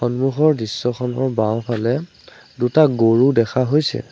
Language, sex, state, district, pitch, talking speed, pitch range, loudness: Assamese, male, Assam, Sonitpur, 125 Hz, 100 wpm, 115-135 Hz, -18 LUFS